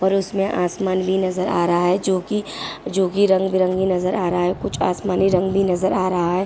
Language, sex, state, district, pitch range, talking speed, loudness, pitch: Hindi, female, Uttar Pradesh, Ghazipur, 185-190 Hz, 220 wpm, -20 LUFS, 185 Hz